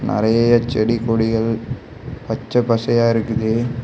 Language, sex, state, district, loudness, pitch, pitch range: Tamil, male, Tamil Nadu, Kanyakumari, -18 LUFS, 115 Hz, 110-120 Hz